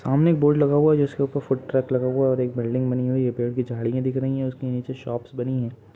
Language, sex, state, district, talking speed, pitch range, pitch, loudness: Hindi, male, Uttar Pradesh, Budaun, 320 wpm, 125-135 Hz, 130 Hz, -23 LUFS